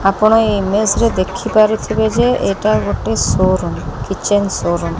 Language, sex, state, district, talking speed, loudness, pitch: Odia, female, Odisha, Khordha, 170 wpm, -15 LUFS, 205 Hz